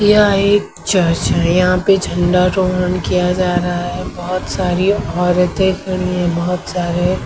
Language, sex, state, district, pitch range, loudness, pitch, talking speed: Hindi, female, Maharashtra, Mumbai Suburban, 180-185 Hz, -15 LUFS, 180 Hz, 140 wpm